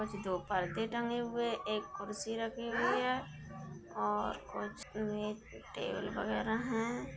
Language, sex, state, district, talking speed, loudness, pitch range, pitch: Hindi, female, Bihar, Darbhanga, 125 wpm, -37 LUFS, 180-235 Hz, 215 Hz